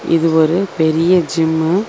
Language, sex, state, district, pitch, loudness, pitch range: Tamil, female, Tamil Nadu, Chennai, 165 Hz, -14 LUFS, 160-180 Hz